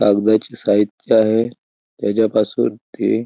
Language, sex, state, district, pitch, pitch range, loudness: Marathi, male, Maharashtra, Chandrapur, 110 Hz, 105-110 Hz, -18 LUFS